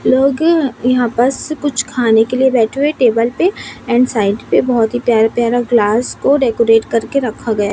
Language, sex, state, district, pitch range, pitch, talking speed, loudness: Hindi, female, Chhattisgarh, Raipur, 230-265 Hz, 245 Hz, 185 wpm, -14 LUFS